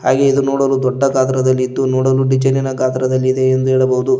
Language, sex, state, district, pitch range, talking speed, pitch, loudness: Kannada, male, Karnataka, Koppal, 130-135 Hz, 140 wpm, 130 Hz, -15 LUFS